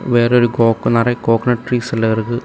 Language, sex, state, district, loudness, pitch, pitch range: Tamil, male, Tamil Nadu, Kanyakumari, -15 LUFS, 120 Hz, 115-125 Hz